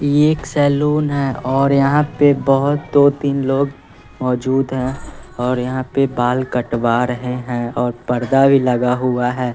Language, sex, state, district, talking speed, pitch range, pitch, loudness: Hindi, female, Bihar, West Champaran, 165 wpm, 125-140 Hz, 130 Hz, -17 LUFS